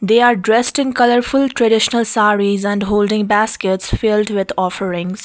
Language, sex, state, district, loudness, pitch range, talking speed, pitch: English, female, Sikkim, Gangtok, -15 LUFS, 200-235 Hz, 150 wpm, 210 Hz